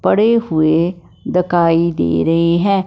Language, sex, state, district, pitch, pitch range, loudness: Hindi, male, Punjab, Fazilka, 170 Hz, 165-195 Hz, -15 LUFS